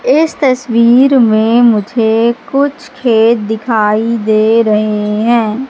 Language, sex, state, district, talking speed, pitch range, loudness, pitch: Hindi, female, Madhya Pradesh, Katni, 105 wpm, 220-255 Hz, -11 LUFS, 230 Hz